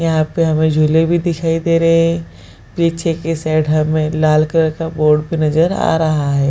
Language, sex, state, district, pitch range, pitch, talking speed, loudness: Hindi, female, Bihar, Jahanabad, 155-165 Hz, 160 Hz, 205 wpm, -15 LUFS